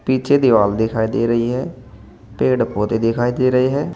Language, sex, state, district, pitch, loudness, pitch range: Hindi, male, Uttar Pradesh, Saharanpur, 120 Hz, -17 LUFS, 115-130 Hz